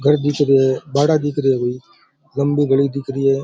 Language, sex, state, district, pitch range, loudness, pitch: Rajasthani, male, Rajasthan, Churu, 135-145 Hz, -17 LUFS, 140 Hz